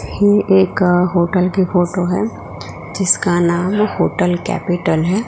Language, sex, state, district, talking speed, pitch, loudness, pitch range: Hindi, female, Gujarat, Gandhinagar, 125 wpm, 180 Hz, -15 LUFS, 175-195 Hz